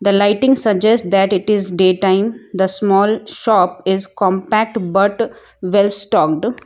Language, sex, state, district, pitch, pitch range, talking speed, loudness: English, female, Gujarat, Valsad, 200 Hz, 190-220 Hz, 145 wpm, -15 LUFS